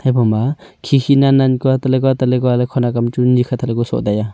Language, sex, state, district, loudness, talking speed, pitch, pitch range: Wancho, male, Arunachal Pradesh, Longding, -15 LUFS, 260 wpm, 125 Hz, 120-135 Hz